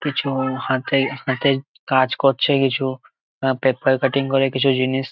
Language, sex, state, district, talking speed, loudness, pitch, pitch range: Bengali, male, West Bengal, Jalpaiguri, 130 wpm, -20 LUFS, 135 Hz, 130-135 Hz